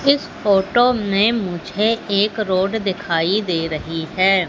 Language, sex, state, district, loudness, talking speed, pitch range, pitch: Hindi, female, Madhya Pradesh, Katni, -18 LUFS, 135 wpm, 180-215 Hz, 195 Hz